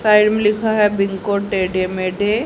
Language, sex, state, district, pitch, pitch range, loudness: Hindi, female, Haryana, Rohtak, 205 Hz, 190-215 Hz, -17 LUFS